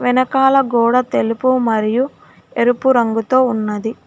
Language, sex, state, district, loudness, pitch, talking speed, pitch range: Telugu, female, Telangana, Hyderabad, -15 LUFS, 245 Hz, 105 wpm, 225-255 Hz